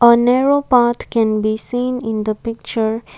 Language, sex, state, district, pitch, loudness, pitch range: English, female, Assam, Kamrup Metropolitan, 235 Hz, -17 LUFS, 220-245 Hz